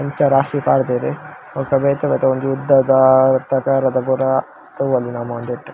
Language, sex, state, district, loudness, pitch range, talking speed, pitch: Tulu, male, Karnataka, Dakshina Kannada, -17 LUFS, 130-135 Hz, 155 wpm, 135 Hz